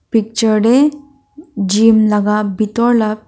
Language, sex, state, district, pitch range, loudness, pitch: Nagamese, female, Nagaland, Dimapur, 215-240 Hz, -13 LUFS, 220 Hz